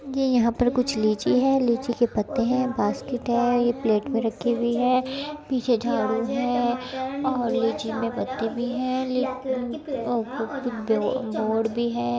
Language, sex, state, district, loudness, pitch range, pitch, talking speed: Hindi, female, Uttar Pradesh, Muzaffarnagar, -24 LUFS, 230-255 Hz, 245 Hz, 155 wpm